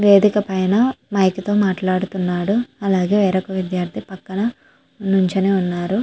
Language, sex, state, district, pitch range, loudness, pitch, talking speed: Telugu, female, Andhra Pradesh, Chittoor, 185-205 Hz, -19 LUFS, 195 Hz, 110 wpm